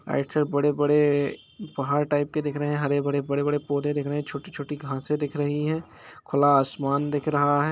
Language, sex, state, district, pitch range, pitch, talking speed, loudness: Hindi, male, Bihar, Gaya, 140-150 Hz, 145 Hz, 180 wpm, -25 LUFS